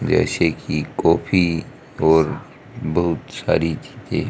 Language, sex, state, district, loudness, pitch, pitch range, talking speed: Hindi, male, Haryana, Rohtak, -20 LUFS, 80 Hz, 80-85 Hz, 95 wpm